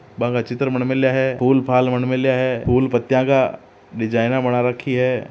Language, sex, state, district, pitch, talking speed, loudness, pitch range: Marwari, male, Rajasthan, Churu, 125 Hz, 205 wpm, -19 LUFS, 125-130 Hz